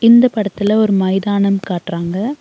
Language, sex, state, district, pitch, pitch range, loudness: Tamil, female, Tamil Nadu, Nilgiris, 200 Hz, 190-220 Hz, -15 LUFS